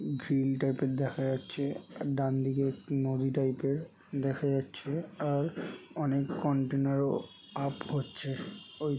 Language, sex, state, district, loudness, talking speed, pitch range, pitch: Bengali, male, West Bengal, Jhargram, -33 LUFS, 120 wpm, 135-145 Hz, 140 Hz